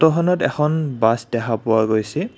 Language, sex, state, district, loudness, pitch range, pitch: Assamese, male, Assam, Kamrup Metropolitan, -19 LUFS, 110-155 Hz, 120 Hz